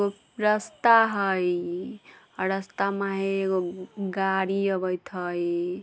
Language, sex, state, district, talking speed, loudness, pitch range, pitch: Bajjika, female, Bihar, Vaishali, 95 wpm, -26 LUFS, 180-200 Hz, 195 Hz